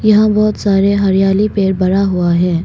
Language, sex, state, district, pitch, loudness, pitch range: Hindi, female, Arunachal Pradesh, Longding, 195 Hz, -13 LUFS, 185-210 Hz